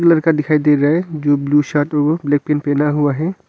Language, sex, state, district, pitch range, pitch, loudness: Hindi, male, Arunachal Pradesh, Longding, 145-160 Hz, 150 Hz, -16 LUFS